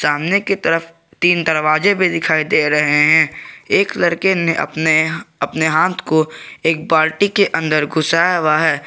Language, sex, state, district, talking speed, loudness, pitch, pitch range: Hindi, male, Jharkhand, Garhwa, 160 wpm, -15 LUFS, 160 Hz, 155-175 Hz